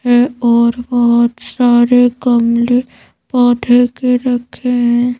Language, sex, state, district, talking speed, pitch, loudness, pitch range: Hindi, female, Madhya Pradesh, Bhopal, 105 wpm, 245 Hz, -12 LUFS, 240-245 Hz